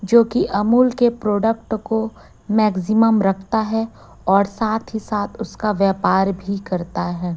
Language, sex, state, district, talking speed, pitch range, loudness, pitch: Hindi, female, Chhattisgarh, Raipur, 140 wpm, 195-225 Hz, -19 LUFS, 215 Hz